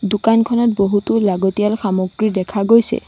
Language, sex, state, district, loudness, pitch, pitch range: Assamese, female, Assam, Sonitpur, -16 LUFS, 210 Hz, 195-225 Hz